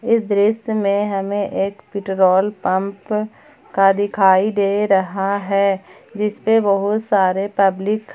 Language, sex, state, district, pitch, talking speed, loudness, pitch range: Hindi, female, Jharkhand, Palamu, 200 Hz, 135 wpm, -18 LUFS, 195-210 Hz